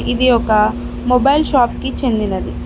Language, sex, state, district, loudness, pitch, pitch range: Telugu, female, Telangana, Mahabubabad, -15 LUFS, 245 Hz, 215-255 Hz